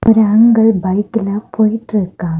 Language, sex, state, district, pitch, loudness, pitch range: Tamil, female, Tamil Nadu, Kanyakumari, 215 Hz, -13 LUFS, 200-225 Hz